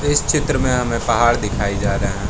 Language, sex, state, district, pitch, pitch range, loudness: Hindi, male, Arunachal Pradesh, Lower Dibang Valley, 120 Hz, 100-130 Hz, -18 LUFS